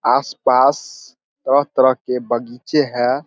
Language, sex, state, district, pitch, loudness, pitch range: Hindi, male, Bihar, Vaishali, 130 Hz, -17 LUFS, 120-140 Hz